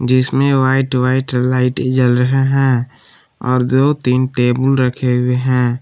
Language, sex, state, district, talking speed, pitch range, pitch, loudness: Hindi, male, Jharkhand, Palamu, 155 wpm, 125-130 Hz, 130 Hz, -14 LUFS